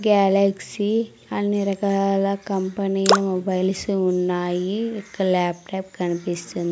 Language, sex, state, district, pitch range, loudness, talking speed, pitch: Telugu, female, Andhra Pradesh, Sri Satya Sai, 180-200 Hz, -22 LUFS, 80 wpm, 195 Hz